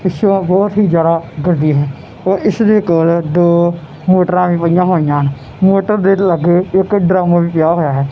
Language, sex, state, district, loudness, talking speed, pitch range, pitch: Punjabi, male, Punjab, Kapurthala, -13 LUFS, 185 wpm, 165-190 Hz, 175 Hz